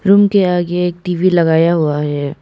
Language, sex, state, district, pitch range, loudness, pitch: Hindi, female, Arunachal Pradesh, Papum Pare, 160-185 Hz, -14 LUFS, 175 Hz